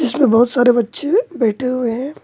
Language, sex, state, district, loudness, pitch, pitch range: Hindi, male, West Bengal, Alipurduar, -16 LUFS, 250 Hz, 240-275 Hz